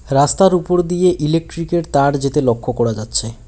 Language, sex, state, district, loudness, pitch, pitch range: Bengali, male, West Bengal, Alipurduar, -16 LUFS, 145 Hz, 125-175 Hz